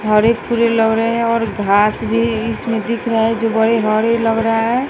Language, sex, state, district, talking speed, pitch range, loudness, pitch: Hindi, female, Bihar, West Champaran, 220 wpm, 220-230 Hz, -16 LUFS, 225 Hz